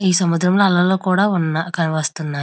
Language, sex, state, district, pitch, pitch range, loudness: Telugu, female, Andhra Pradesh, Visakhapatnam, 180 Hz, 160-185 Hz, -17 LUFS